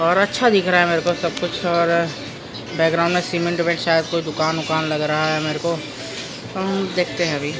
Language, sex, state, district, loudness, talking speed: Hindi, female, Maharashtra, Mumbai Suburban, -20 LUFS, 205 wpm